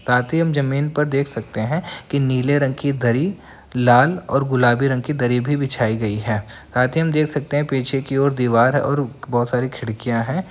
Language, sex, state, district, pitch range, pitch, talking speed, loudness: Hindi, female, Bihar, Madhepura, 125-145 Hz, 135 Hz, 215 wpm, -19 LUFS